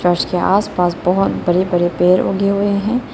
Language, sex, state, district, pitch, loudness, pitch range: Hindi, female, Arunachal Pradesh, Lower Dibang Valley, 185 Hz, -16 LUFS, 175-200 Hz